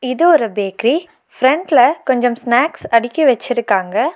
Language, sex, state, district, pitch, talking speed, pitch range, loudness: Tamil, female, Tamil Nadu, Nilgiris, 250 Hz, 115 wpm, 235-300 Hz, -15 LUFS